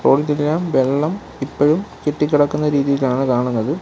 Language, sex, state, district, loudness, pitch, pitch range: Malayalam, male, Kerala, Kollam, -18 LUFS, 145 Hz, 135-150 Hz